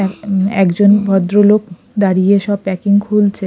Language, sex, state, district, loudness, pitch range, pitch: Bengali, female, Odisha, Khordha, -13 LUFS, 190-205 Hz, 200 Hz